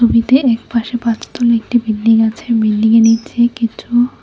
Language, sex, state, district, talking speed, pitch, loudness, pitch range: Bengali, female, Tripura, West Tripura, 130 wpm, 230 Hz, -14 LUFS, 225-240 Hz